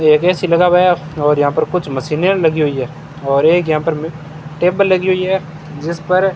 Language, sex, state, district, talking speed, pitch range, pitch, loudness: Hindi, male, Rajasthan, Bikaner, 235 wpm, 155-180 Hz, 160 Hz, -15 LUFS